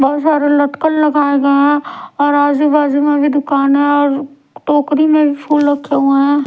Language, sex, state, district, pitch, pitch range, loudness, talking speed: Hindi, female, Odisha, Sambalpur, 290 Hz, 285-295 Hz, -13 LUFS, 185 wpm